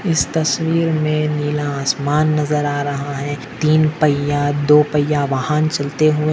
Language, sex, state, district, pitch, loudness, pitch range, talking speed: Hindi, male, Maharashtra, Dhule, 150 Hz, -17 LUFS, 145-155 Hz, 160 wpm